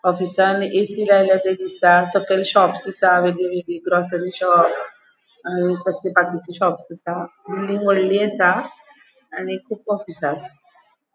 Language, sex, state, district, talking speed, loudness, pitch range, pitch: Konkani, female, Goa, North and South Goa, 125 wpm, -19 LUFS, 180-200 Hz, 185 Hz